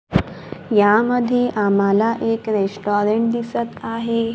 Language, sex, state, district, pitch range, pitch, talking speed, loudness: Marathi, female, Maharashtra, Gondia, 205-230 Hz, 225 Hz, 85 wpm, -19 LUFS